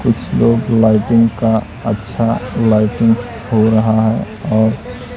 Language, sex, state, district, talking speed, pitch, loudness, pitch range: Hindi, male, Madhya Pradesh, Katni, 115 wpm, 115 Hz, -14 LUFS, 110-115 Hz